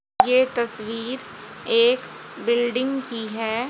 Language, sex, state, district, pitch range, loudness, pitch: Hindi, female, Haryana, Jhajjar, 230-260 Hz, -22 LUFS, 240 Hz